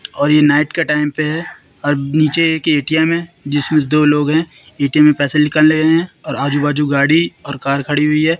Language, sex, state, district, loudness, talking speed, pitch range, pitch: Hindi, female, Madhya Pradesh, Katni, -14 LUFS, 220 wpm, 145-160 Hz, 150 Hz